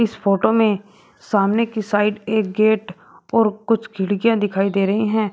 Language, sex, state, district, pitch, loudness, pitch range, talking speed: Hindi, male, Uttar Pradesh, Shamli, 210 Hz, -19 LUFS, 200-220 Hz, 170 wpm